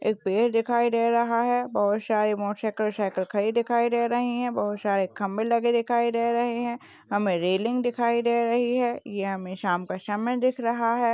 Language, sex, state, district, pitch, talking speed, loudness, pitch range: Hindi, female, Maharashtra, Chandrapur, 235 Hz, 200 wpm, -25 LUFS, 205-235 Hz